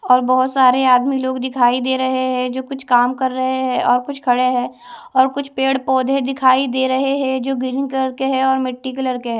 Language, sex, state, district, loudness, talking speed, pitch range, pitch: Hindi, female, Odisha, Malkangiri, -17 LUFS, 235 wpm, 255-265 Hz, 260 Hz